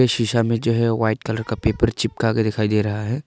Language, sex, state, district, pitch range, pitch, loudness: Hindi, male, Arunachal Pradesh, Longding, 110-115 Hz, 115 Hz, -21 LUFS